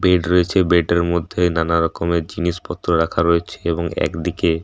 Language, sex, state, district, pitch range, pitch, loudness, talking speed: Bengali, male, Jharkhand, Sahebganj, 85-90 Hz, 85 Hz, -19 LUFS, 170 wpm